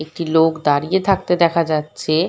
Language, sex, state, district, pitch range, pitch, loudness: Bengali, female, West Bengal, Dakshin Dinajpur, 155-170 Hz, 165 Hz, -17 LUFS